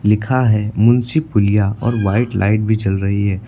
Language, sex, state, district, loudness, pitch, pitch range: Hindi, male, Uttar Pradesh, Lucknow, -16 LUFS, 105 Hz, 100-120 Hz